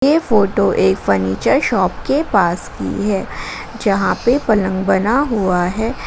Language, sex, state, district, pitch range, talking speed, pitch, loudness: Hindi, female, Jharkhand, Garhwa, 190-260 Hz, 150 wpm, 210 Hz, -16 LUFS